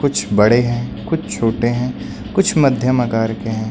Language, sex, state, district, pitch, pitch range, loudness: Hindi, male, Uttar Pradesh, Lucknow, 120 Hz, 115-130 Hz, -17 LUFS